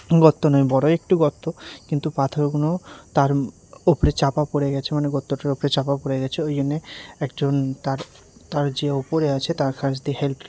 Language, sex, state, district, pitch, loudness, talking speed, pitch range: Bengali, male, Odisha, Nuapada, 145 Hz, -22 LUFS, 175 wpm, 140-150 Hz